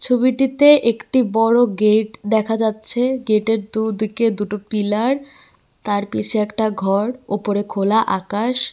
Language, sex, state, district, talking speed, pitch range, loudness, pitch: Bengali, female, Tripura, West Tripura, 115 wpm, 210-245 Hz, -18 LUFS, 220 Hz